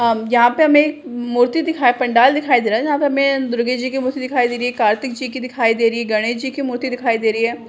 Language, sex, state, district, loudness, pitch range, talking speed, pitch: Hindi, female, Chhattisgarh, Raigarh, -17 LUFS, 235-270 Hz, 290 wpm, 245 Hz